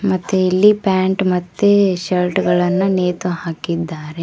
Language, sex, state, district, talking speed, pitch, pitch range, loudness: Kannada, male, Karnataka, Koppal, 115 wpm, 185 Hz, 175-190 Hz, -16 LUFS